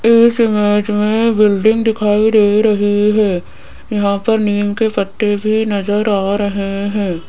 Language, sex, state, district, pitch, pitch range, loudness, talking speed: Hindi, female, Rajasthan, Jaipur, 210 Hz, 205-220 Hz, -14 LUFS, 150 wpm